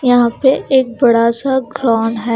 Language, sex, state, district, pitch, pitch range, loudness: Hindi, female, Chandigarh, Chandigarh, 240 Hz, 230-265 Hz, -14 LUFS